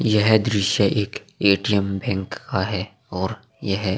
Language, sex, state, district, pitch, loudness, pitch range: Hindi, male, Bihar, Vaishali, 100 Hz, -22 LUFS, 95-105 Hz